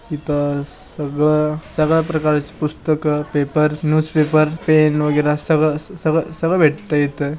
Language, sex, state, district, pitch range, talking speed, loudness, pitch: Marathi, female, Maharashtra, Aurangabad, 150-155 Hz, 130 wpm, -18 LUFS, 150 Hz